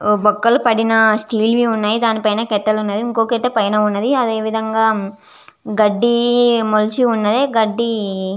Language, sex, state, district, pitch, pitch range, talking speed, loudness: Telugu, female, Andhra Pradesh, Visakhapatnam, 220 Hz, 210-235 Hz, 130 wpm, -16 LUFS